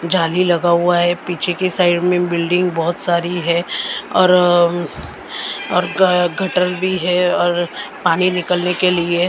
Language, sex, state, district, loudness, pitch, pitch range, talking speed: Hindi, female, Maharashtra, Mumbai Suburban, -16 LUFS, 175 Hz, 175-180 Hz, 150 wpm